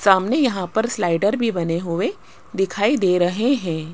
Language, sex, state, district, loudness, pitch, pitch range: Hindi, female, Rajasthan, Jaipur, -20 LUFS, 195 Hz, 175-220 Hz